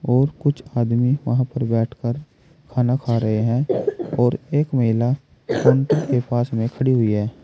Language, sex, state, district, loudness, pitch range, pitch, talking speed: Hindi, male, Uttar Pradesh, Saharanpur, -20 LUFS, 120-145 Hz, 125 Hz, 160 wpm